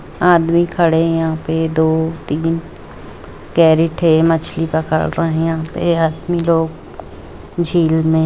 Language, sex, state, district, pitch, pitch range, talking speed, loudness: Hindi, female, Jharkhand, Jamtara, 160 Hz, 160-165 Hz, 130 wpm, -16 LUFS